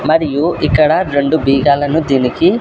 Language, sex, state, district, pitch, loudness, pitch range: Telugu, male, Andhra Pradesh, Sri Satya Sai, 145 Hz, -13 LUFS, 135-160 Hz